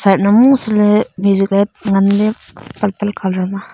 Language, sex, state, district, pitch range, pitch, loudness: Wancho, female, Arunachal Pradesh, Longding, 195-210 Hz, 200 Hz, -14 LUFS